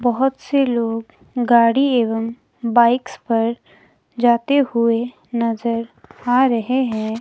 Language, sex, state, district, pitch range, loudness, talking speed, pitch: Hindi, female, Himachal Pradesh, Shimla, 230-250 Hz, -18 LUFS, 110 wpm, 235 Hz